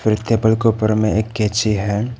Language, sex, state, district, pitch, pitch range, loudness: Hindi, male, Arunachal Pradesh, Papum Pare, 110 Hz, 105-115 Hz, -17 LUFS